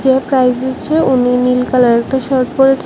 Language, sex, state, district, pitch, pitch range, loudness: Bengali, male, Tripura, West Tripura, 260 Hz, 250-270 Hz, -13 LUFS